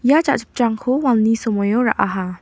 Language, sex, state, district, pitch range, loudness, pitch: Garo, female, Meghalaya, West Garo Hills, 220-255 Hz, -18 LUFS, 230 Hz